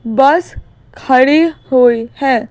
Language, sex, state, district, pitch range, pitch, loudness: Hindi, female, Madhya Pradesh, Bhopal, 245-280 Hz, 260 Hz, -12 LUFS